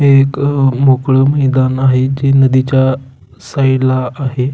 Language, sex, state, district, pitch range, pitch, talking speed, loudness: Marathi, male, Maharashtra, Pune, 130-135 Hz, 130 Hz, 130 wpm, -12 LUFS